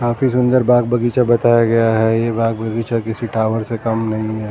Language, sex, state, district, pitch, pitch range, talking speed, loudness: Hindi, male, Maharashtra, Mumbai Suburban, 115 Hz, 110-120 Hz, 200 wpm, -16 LUFS